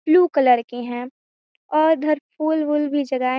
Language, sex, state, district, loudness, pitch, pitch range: Hindi, female, Chhattisgarh, Raigarh, -20 LUFS, 290 Hz, 255-310 Hz